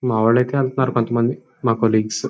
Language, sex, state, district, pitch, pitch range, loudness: Telugu, male, Andhra Pradesh, Chittoor, 120 Hz, 115-130 Hz, -19 LUFS